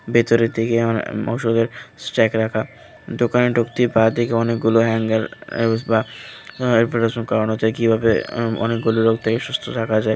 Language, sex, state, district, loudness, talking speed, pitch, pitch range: Bengali, male, Tripura, West Tripura, -19 LUFS, 130 wpm, 115 Hz, 110-115 Hz